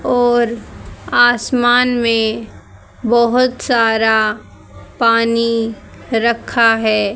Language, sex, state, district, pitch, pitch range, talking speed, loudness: Hindi, female, Haryana, Charkhi Dadri, 230 Hz, 225-240 Hz, 65 wpm, -14 LUFS